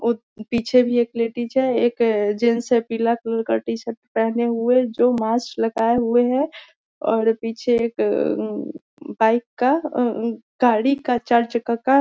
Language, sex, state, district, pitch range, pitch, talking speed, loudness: Hindi, female, Bihar, Muzaffarpur, 225-245 Hz, 235 Hz, 145 wpm, -20 LUFS